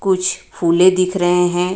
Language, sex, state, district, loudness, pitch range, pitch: Hindi, female, Jharkhand, Ranchi, -15 LUFS, 175-185 Hz, 180 Hz